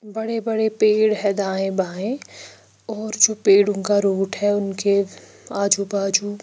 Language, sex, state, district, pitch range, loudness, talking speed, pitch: Hindi, female, Chandigarh, Chandigarh, 200-215 Hz, -20 LUFS, 140 wpm, 205 Hz